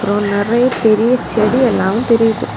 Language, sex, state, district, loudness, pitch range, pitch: Tamil, female, Tamil Nadu, Kanyakumari, -14 LUFS, 205-235 Hz, 225 Hz